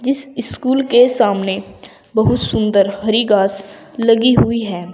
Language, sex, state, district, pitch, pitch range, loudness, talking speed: Hindi, female, Uttar Pradesh, Saharanpur, 230 Hz, 200-250 Hz, -15 LUFS, 135 wpm